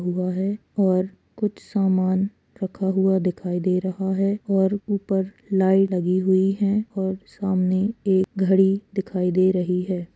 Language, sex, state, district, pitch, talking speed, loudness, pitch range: Hindi, female, Chhattisgarh, Kabirdham, 190 Hz, 150 wpm, -22 LUFS, 185-195 Hz